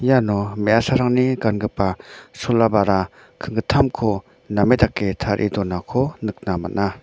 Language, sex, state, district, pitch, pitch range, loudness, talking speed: Garo, male, Meghalaya, North Garo Hills, 110 Hz, 100-125 Hz, -20 LUFS, 100 wpm